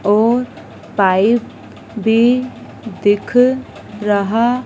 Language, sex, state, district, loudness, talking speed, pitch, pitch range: Hindi, female, Madhya Pradesh, Dhar, -15 LUFS, 65 wpm, 225 Hz, 205-245 Hz